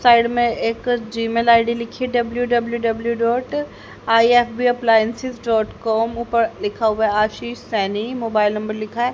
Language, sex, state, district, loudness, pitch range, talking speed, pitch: Hindi, female, Haryana, Charkhi Dadri, -19 LUFS, 225-240 Hz, 160 wpm, 230 Hz